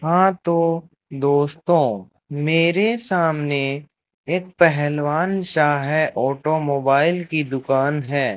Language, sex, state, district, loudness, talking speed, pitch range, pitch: Hindi, male, Rajasthan, Bikaner, -20 LUFS, 95 wpm, 140-170 Hz, 155 Hz